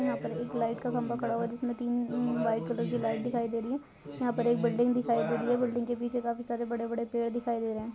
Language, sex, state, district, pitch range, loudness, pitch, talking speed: Hindi, female, Goa, North and South Goa, 235-240 Hz, -31 LUFS, 235 Hz, 295 wpm